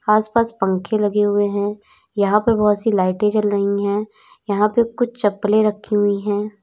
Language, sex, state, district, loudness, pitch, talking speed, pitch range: Hindi, female, Uttar Pradesh, Lalitpur, -19 LUFS, 210 Hz, 180 wpm, 205-215 Hz